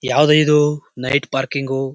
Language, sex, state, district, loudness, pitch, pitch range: Kannada, male, Karnataka, Chamarajanagar, -17 LUFS, 140 Hz, 135-150 Hz